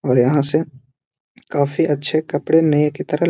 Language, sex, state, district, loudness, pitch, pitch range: Hindi, male, Bihar, Jahanabad, -18 LUFS, 150 Hz, 140-155 Hz